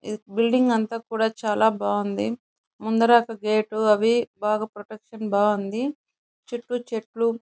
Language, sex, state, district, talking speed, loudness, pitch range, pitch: Telugu, female, Andhra Pradesh, Chittoor, 130 wpm, -23 LUFS, 210-230 Hz, 220 Hz